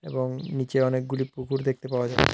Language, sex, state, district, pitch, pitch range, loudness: Bengali, male, Tripura, South Tripura, 130 Hz, 130-135 Hz, -27 LUFS